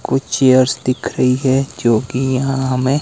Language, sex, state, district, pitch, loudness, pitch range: Hindi, male, Himachal Pradesh, Shimla, 130 Hz, -16 LUFS, 130-135 Hz